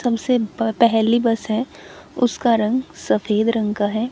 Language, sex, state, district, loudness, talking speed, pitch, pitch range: Hindi, female, Haryana, Charkhi Dadri, -19 LUFS, 160 wpm, 230 Hz, 215-240 Hz